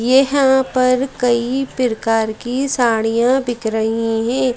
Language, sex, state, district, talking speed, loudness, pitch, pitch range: Hindi, female, Madhya Pradesh, Bhopal, 120 wpm, -17 LUFS, 245 Hz, 225-265 Hz